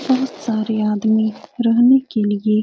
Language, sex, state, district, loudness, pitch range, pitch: Hindi, female, Uttar Pradesh, Etah, -17 LUFS, 215-250 Hz, 220 Hz